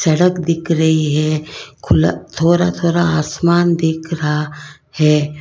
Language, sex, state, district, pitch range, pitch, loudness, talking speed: Hindi, female, Karnataka, Bangalore, 150-170 Hz, 160 Hz, -16 LUFS, 120 wpm